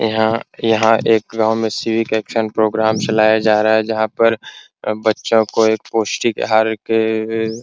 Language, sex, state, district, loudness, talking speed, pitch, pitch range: Hindi, male, Bihar, Supaul, -16 LUFS, 175 wpm, 110 Hz, 110-115 Hz